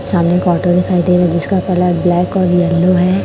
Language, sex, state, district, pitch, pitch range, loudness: Hindi, male, Chhattisgarh, Raipur, 180 Hz, 175-180 Hz, -13 LUFS